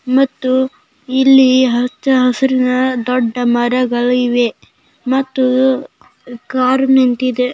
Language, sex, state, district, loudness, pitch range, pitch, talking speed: Kannada, female, Karnataka, Gulbarga, -14 LUFS, 250-265 Hz, 255 Hz, 70 wpm